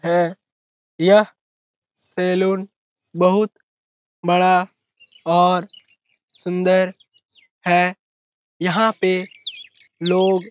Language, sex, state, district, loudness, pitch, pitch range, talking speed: Hindi, male, Bihar, Jahanabad, -19 LUFS, 180 Hz, 175-190 Hz, 70 wpm